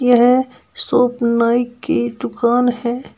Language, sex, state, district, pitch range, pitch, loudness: Hindi, female, Uttar Pradesh, Shamli, 235-245 Hz, 240 Hz, -16 LUFS